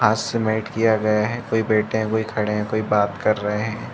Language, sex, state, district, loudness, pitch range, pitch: Hindi, male, Chhattisgarh, Rajnandgaon, -21 LUFS, 105-110 Hz, 110 Hz